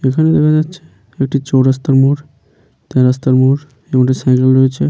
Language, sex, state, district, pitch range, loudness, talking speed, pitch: Bengali, male, West Bengal, Paschim Medinipur, 130-145 Hz, -13 LUFS, 135 wpm, 135 Hz